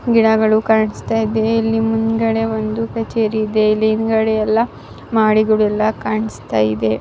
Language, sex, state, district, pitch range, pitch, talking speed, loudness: Kannada, female, Karnataka, Raichur, 215-225 Hz, 220 Hz, 130 wpm, -16 LUFS